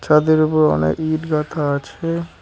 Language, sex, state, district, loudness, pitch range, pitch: Bengali, male, West Bengal, Cooch Behar, -18 LUFS, 145-155 Hz, 155 Hz